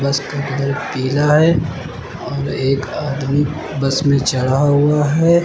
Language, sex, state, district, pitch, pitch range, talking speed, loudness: Hindi, male, Uttar Pradesh, Lucknow, 140 Hz, 135-150 Hz, 130 wpm, -17 LUFS